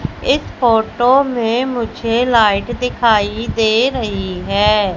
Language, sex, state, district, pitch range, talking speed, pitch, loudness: Hindi, female, Madhya Pradesh, Katni, 210-245 Hz, 110 wpm, 230 Hz, -15 LUFS